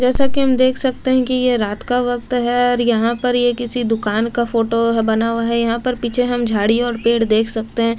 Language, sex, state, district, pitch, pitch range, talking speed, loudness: Hindi, female, Delhi, New Delhi, 240 Hz, 230-245 Hz, 240 wpm, -17 LUFS